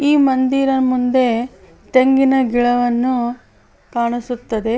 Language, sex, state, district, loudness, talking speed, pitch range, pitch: Kannada, female, Karnataka, Bellary, -16 LUFS, 90 wpm, 240-265 Hz, 250 Hz